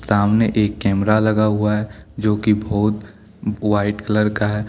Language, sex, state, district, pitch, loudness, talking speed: Hindi, male, Jharkhand, Deoghar, 105 Hz, -18 LUFS, 165 wpm